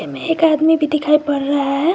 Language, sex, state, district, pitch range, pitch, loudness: Hindi, female, Jharkhand, Garhwa, 280-320 Hz, 300 Hz, -16 LUFS